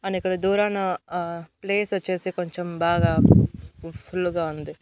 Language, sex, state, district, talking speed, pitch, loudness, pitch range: Telugu, female, Andhra Pradesh, Annamaya, 135 wpm, 185 Hz, -23 LUFS, 170-195 Hz